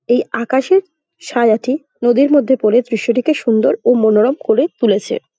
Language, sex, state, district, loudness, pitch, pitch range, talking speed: Bengali, female, West Bengal, Jhargram, -14 LUFS, 245 Hz, 230-285 Hz, 135 wpm